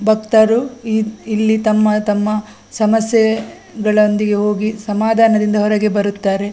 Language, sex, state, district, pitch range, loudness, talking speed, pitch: Kannada, female, Karnataka, Dakshina Kannada, 210-220 Hz, -15 LUFS, 100 wpm, 215 Hz